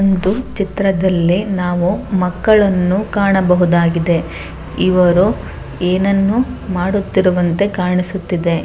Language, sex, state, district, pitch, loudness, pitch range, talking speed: Kannada, female, Karnataka, Bellary, 185 Hz, -15 LUFS, 180-195 Hz, 60 wpm